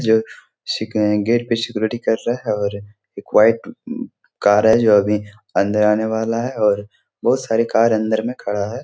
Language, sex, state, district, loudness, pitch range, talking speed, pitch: Hindi, male, Bihar, Jahanabad, -18 LUFS, 105-115 Hz, 190 wpm, 110 Hz